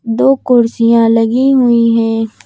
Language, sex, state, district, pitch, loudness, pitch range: Hindi, female, Madhya Pradesh, Bhopal, 235 Hz, -11 LUFS, 230-250 Hz